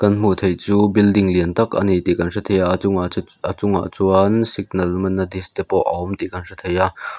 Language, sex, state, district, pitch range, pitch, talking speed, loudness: Mizo, male, Mizoram, Aizawl, 90-100 Hz, 95 Hz, 260 wpm, -18 LUFS